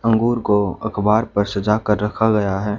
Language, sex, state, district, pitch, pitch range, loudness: Hindi, male, Haryana, Charkhi Dadri, 105 Hz, 105-110 Hz, -19 LUFS